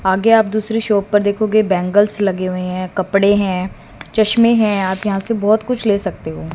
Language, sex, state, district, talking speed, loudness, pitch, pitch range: Hindi, female, Haryana, Rohtak, 200 wpm, -16 LUFS, 205 Hz, 190-215 Hz